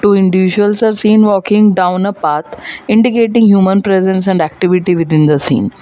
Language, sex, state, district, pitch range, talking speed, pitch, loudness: English, female, Gujarat, Valsad, 180-210 Hz, 165 wpm, 195 Hz, -11 LUFS